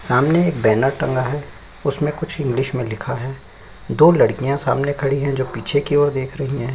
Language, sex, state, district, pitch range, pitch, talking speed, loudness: Hindi, male, Chhattisgarh, Kabirdham, 130-145 Hz, 135 Hz, 205 wpm, -19 LUFS